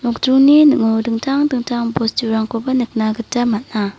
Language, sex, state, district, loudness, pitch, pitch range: Garo, female, Meghalaya, South Garo Hills, -16 LUFS, 235 Hz, 225-260 Hz